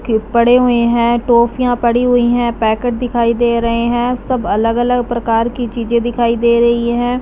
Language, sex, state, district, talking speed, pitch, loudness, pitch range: Hindi, female, Punjab, Fazilka, 190 wpm, 235 Hz, -14 LUFS, 235-245 Hz